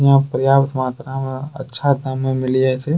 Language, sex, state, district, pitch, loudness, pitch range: Angika, male, Bihar, Bhagalpur, 135 Hz, -19 LUFS, 130-140 Hz